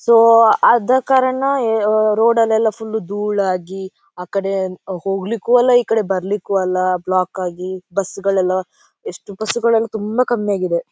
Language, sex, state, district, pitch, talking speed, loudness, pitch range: Kannada, female, Karnataka, Dakshina Kannada, 210 Hz, 135 wpm, -17 LUFS, 185-230 Hz